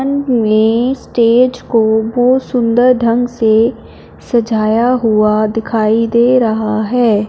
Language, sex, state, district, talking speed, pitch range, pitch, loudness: Hindi, female, Punjab, Fazilka, 105 wpm, 220-245 Hz, 230 Hz, -12 LUFS